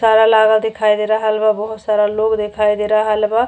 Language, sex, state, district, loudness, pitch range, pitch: Bhojpuri, female, Uttar Pradesh, Ghazipur, -15 LUFS, 210-220 Hz, 215 Hz